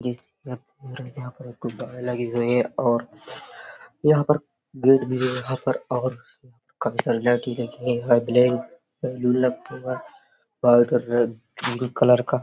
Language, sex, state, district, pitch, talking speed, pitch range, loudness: Hindi, male, Uttar Pradesh, Hamirpur, 125 Hz, 100 wpm, 120-130 Hz, -23 LUFS